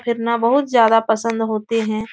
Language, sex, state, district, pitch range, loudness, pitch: Hindi, female, Uttar Pradesh, Etah, 220-235 Hz, -17 LUFS, 230 Hz